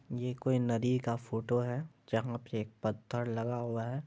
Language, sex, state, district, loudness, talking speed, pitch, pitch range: Hindi, male, Bihar, Madhepura, -35 LUFS, 190 wpm, 120 Hz, 115-125 Hz